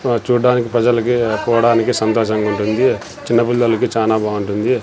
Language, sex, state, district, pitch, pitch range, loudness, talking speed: Telugu, male, Andhra Pradesh, Sri Satya Sai, 115 Hz, 110-120 Hz, -16 LUFS, 110 wpm